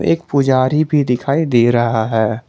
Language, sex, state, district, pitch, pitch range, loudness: Hindi, male, Jharkhand, Garhwa, 130 Hz, 120-145 Hz, -15 LUFS